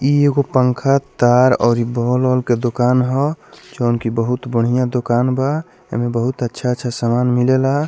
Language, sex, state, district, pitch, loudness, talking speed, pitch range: Bhojpuri, male, Bihar, Muzaffarpur, 125 Hz, -17 LUFS, 160 wpm, 120-130 Hz